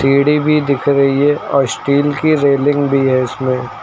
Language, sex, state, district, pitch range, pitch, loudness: Hindi, male, Uttar Pradesh, Lucknow, 135-145 Hz, 140 Hz, -14 LUFS